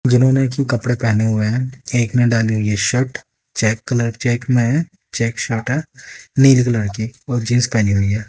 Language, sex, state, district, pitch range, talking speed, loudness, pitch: Hindi, male, Haryana, Jhajjar, 110-130 Hz, 210 wpm, -17 LUFS, 120 Hz